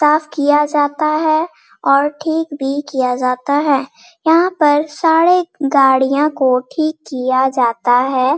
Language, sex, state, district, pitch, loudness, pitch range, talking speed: Hindi, female, Bihar, Bhagalpur, 290 Hz, -15 LUFS, 265-310 Hz, 150 wpm